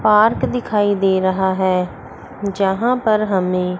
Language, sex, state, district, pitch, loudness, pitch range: Hindi, female, Chandigarh, Chandigarh, 195 Hz, -17 LUFS, 190-215 Hz